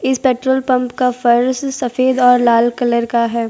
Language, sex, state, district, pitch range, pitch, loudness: Hindi, female, Gujarat, Valsad, 235-260 Hz, 250 Hz, -15 LUFS